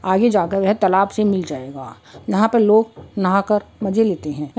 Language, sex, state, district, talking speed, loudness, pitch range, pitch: Hindi, female, Andhra Pradesh, Chittoor, 210 wpm, -18 LUFS, 165-210 Hz, 195 Hz